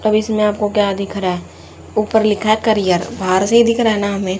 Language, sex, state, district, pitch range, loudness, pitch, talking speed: Hindi, female, Haryana, Charkhi Dadri, 195-215 Hz, -16 LUFS, 210 Hz, 245 wpm